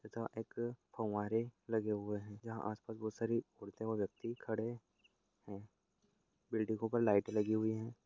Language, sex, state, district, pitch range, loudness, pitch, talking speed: Hindi, male, Bihar, Lakhisarai, 105-115 Hz, -40 LUFS, 110 Hz, 155 wpm